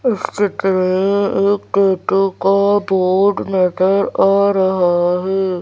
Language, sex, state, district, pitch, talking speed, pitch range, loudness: Hindi, female, Madhya Pradesh, Bhopal, 195 Hz, 115 wpm, 185-200 Hz, -15 LUFS